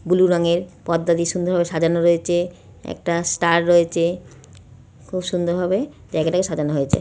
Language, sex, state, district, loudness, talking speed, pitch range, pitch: Bengali, female, West Bengal, North 24 Parganas, -20 LUFS, 135 wpm, 165-180 Hz, 170 Hz